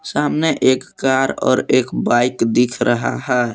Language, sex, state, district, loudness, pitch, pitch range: Hindi, male, Jharkhand, Palamu, -17 LUFS, 125 Hz, 120-130 Hz